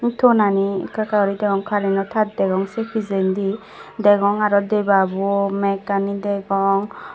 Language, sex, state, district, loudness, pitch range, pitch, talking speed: Chakma, female, Tripura, Dhalai, -19 LUFS, 195-210 Hz, 200 Hz, 125 wpm